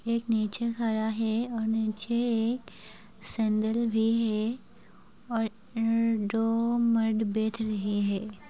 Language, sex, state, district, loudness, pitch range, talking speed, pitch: Hindi, female, Uttar Pradesh, Budaun, -28 LUFS, 215-230 Hz, 120 wpm, 225 Hz